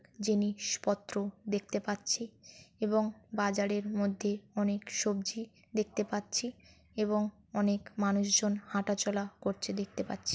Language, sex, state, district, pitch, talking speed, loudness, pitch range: Bengali, female, West Bengal, Jalpaiguri, 205 Hz, 110 wpm, -33 LUFS, 200-210 Hz